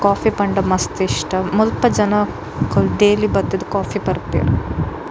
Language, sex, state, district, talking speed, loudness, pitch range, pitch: Tulu, female, Karnataka, Dakshina Kannada, 115 wpm, -18 LUFS, 155-210 Hz, 200 Hz